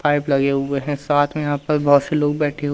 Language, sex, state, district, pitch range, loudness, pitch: Hindi, male, Madhya Pradesh, Umaria, 140-150 Hz, -19 LUFS, 145 Hz